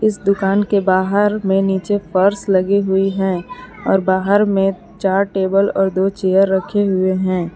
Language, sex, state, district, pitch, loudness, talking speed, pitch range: Hindi, female, Jharkhand, Palamu, 195 Hz, -16 LUFS, 165 wpm, 190-200 Hz